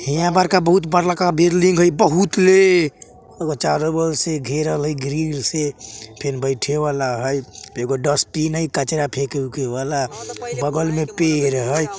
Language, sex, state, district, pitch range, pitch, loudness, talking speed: Bajjika, male, Bihar, Vaishali, 135-170 Hz, 150 Hz, -18 LUFS, 150 wpm